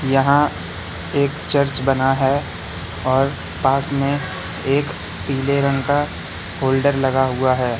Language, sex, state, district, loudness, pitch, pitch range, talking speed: Hindi, male, Madhya Pradesh, Katni, -19 LUFS, 135 Hz, 90-140 Hz, 125 wpm